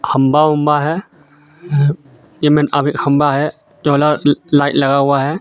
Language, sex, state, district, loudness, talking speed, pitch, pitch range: Hindi, male, Jharkhand, Deoghar, -14 LUFS, 110 wpm, 145 Hz, 140-150 Hz